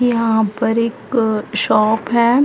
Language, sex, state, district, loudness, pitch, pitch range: Hindi, female, Chhattisgarh, Bilaspur, -16 LUFS, 230 Hz, 220-235 Hz